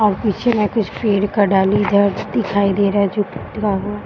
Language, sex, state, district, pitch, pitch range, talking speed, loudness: Hindi, female, Bihar, Sitamarhi, 205 Hz, 200-210 Hz, 235 wpm, -17 LUFS